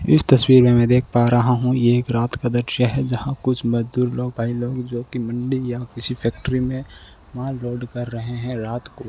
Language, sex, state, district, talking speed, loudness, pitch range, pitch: Hindi, male, Rajasthan, Bikaner, 225 wpm, -20 LUFS, 120-125 Hz, 125 Hz